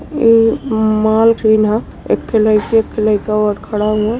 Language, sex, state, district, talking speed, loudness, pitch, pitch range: Awadhi, female, Uttar Pradesh, Varanasi, 185 wpm, -14 LUFS, 215 Hz, 215-225 Hz